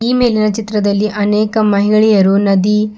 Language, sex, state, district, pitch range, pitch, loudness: Kannada, female, Karnataka, Bidar, 205-215 Hz, 210 Hz, -12 LUFS